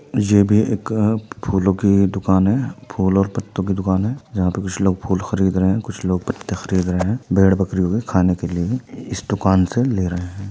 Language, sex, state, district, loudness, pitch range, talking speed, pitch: Hindi, male, Uttar Pradesh, Muzaffarnagar, -19 LUFS, 95-110 Hz, 225 wpm, 95 Hz